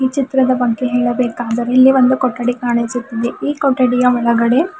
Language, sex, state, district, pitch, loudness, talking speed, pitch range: Kannada, female, Karnataka, Bidar, 250 Hz, -15 LUFS, 140 wpm, 240-260 Hz